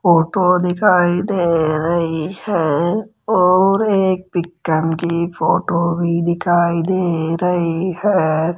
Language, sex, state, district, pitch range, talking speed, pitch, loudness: Hindi, male, Rajasthan, Jaipur, 170-185 Hz, 105 wpm, 175 Hz, -17 LUFS